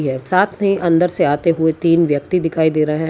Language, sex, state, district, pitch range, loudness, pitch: Hindi, female, Gujarat, Valsad, 155-180 Hz, -16 LUFS, 165 Hz